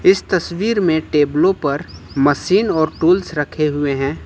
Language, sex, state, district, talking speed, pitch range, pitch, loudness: Hindi, male, Jharkhand, Ranchi, 155 wpm, 145-185 Hz, 155 Hz, -17 LUFS